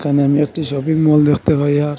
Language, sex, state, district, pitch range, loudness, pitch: Bengali, male, Assam, Hailakandi, 145-155 Hz, -15 LUFS, 145 Hz